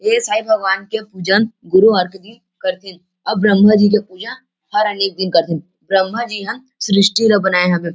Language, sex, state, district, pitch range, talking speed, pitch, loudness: Chhattisgarhi, male, Chhattisgarh, Rajnandgaon, 190-220 Hz, 195 wpm, 205 Hz, -15 LUFS